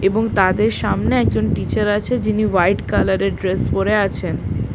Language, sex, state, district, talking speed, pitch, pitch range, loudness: Bengali, female, West Bengal, Paschim Medinipur, 165 wpm, 200 Hz, 175-215 Hz, -18 LUFS